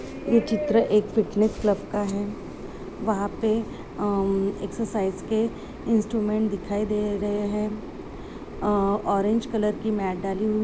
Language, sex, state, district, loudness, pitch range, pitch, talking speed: Hindi, female, Maharashtra, Nagpur, -25 LUFS, 200-220 Hz, 210 Hz, 125 wpm